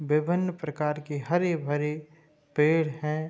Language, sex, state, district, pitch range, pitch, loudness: Hindi, male, Uttar Pradesh, Budaun, 150-160 Hz, 150 Hz, -28 LUFS